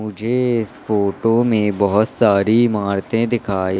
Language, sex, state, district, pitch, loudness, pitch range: Hindi, male, Madhya Pradesh, Katni, 110 Hz, -17 LUFS, 100-115 Hz